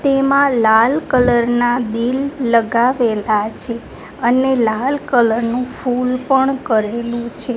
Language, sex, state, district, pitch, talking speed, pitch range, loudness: Gujarati, female, Gujarat, Gandhinagar, 245 Hz, 120 wpm, 235-265 Hz, -16 LUFS